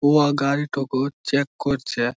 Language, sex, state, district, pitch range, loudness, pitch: Bengali, male, West Bengal, Malda, 135-145 Hz, -22 LUFS, 140 Hz